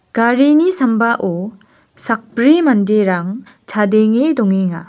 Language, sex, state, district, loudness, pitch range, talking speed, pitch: Garo, female, Meghalaya, West Garo Hills, -14 LUFS, 200-250 Hz, 75 wpm, 225 Hz